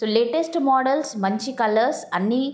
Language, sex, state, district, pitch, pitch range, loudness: Telugu, female, Andhra Pradesh, Guntur, 235 Hz, 220-270 Hz, -22 LUFS